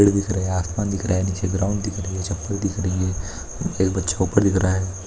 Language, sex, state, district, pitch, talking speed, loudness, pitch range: Hindi, male, Maharashtra, Nagpur, 95 Hz, 260 wpm, -23 LUFS, 95-100 Hz